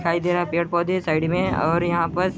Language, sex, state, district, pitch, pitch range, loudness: Hindi, male, Chhattisgarh, Sarguja, 170 Hz, 170-175 Hz, -22 LUFS